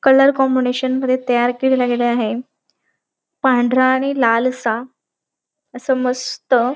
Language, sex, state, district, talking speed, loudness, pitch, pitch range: Marathi, female, Maharashtra, Dhule, 125 wpm, -17 LUFS, 255 Hz, 245-260 Hz